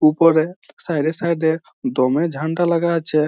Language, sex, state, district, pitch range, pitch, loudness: Bengali, male, West Bengal, Malda, 155-170 Hz, 160 Hz, -19 LUFS